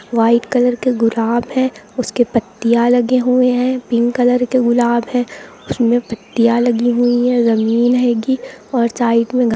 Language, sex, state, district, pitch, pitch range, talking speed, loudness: Hindi, female, Uttar Pradesh, Lucknow, 240 Hz, 235-250 Hz, 170 wpm, -15 LUFS